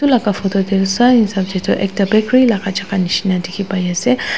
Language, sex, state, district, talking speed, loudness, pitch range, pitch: Nagamese, female, Nagaland, Dimapur, 190 wpm, -15 LUFS, 185-215 Hz, 195 Hz